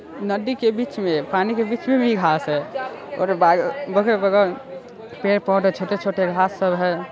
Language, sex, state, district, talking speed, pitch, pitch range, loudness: Hindi, male, Bihar, Sitamarhi, 145 wpm, 195 Hz, 185-225 Hz, -20 LUFS